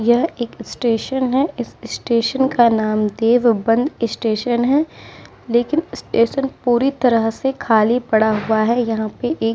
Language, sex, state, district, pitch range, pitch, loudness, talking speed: Hindi, female, Uttar Pradesh, Muzaffarnagar, 225-255 Hz, 235 Hz, -18 LUFS, 155 wpm